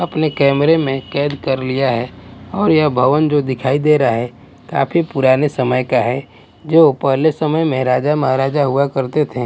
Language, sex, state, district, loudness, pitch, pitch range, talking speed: Hindi, male, Bihar, West Champaran, -15 LUFS, 135 Hz, 130-150 Hz, 185 wpm